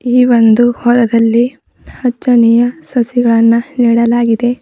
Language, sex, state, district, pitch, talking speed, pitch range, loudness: Kannada, female, Karnataka, Bidar, 240 Hz, 80 wpm, 230-245 Hz, -11 LUFS